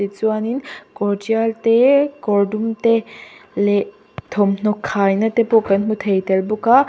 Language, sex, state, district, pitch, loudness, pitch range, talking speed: Mizo, female, Mizoram, Aizawl, 215 Hz, -18 LUFS, 200-225 Hz, 175 wpm